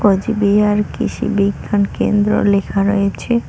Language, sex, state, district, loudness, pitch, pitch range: Bengali, female, West Bengal, Cooch Behar, -16 LUFS, 205 Hz, 200-210 Hz